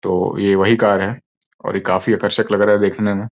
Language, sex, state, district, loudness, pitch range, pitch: Hindi, male, Uttar Pradesh, Gorakhpur, -17 LUFS, 100-105 Hz, 100 Hz